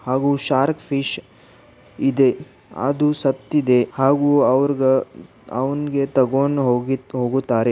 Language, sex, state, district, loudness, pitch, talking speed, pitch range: Kannada, male, Karnataka, Belgaum, -19 LUFS, 135 Hz, 100 wpm, 125-140 Hz